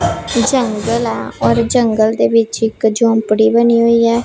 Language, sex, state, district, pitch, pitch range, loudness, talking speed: Punjabi, female, Punjab, Pathankot, 230 Hz, 220-235 Hz, -13 LUFS, 155 wpm